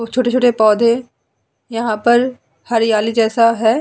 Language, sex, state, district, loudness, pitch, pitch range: Hindi, female, Uttar Pradesh, Jalaun, -15 LUFS, 230 Hz, 225-245 Hz